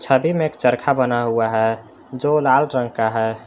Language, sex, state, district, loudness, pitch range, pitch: Hindi, male, Jharkhand, Palamu, -19 LUFS, 115-140 Hz, 125 Hz